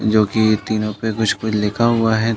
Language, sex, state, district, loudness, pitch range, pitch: Hindi, male, Uttar Pradesh, Jalaun, -18 LUFS, 105-115 Hz, 110 Hz